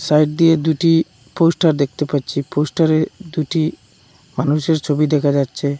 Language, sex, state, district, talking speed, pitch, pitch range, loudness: Bengali, male, Assam, Hailakandi, 125 wpm, 150 Hz, 145-160 Hz, -17 LUFS